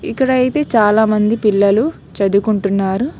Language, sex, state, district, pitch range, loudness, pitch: Telugu, female, Telangana, Hyderabad, 200-255 Hz, -14 LUFS, 215 Hz